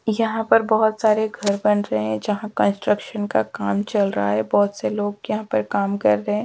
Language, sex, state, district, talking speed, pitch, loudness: Hindi, female, Bihar, Patna, 225 wpm, 205 Hz, -21 LUFS